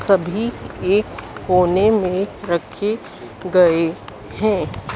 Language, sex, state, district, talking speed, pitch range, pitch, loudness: Hindi, female, Madhya Pradesh, Dhar, 85 wpm, 180-210 Hz, 195 Hz, -19 LUFS